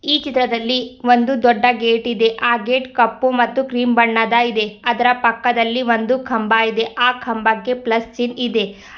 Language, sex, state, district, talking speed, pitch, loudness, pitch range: Kannada, female, Karnataka, Bidar, 155 wpm, 240 Hz, -17 LUFS, 230-250 Hz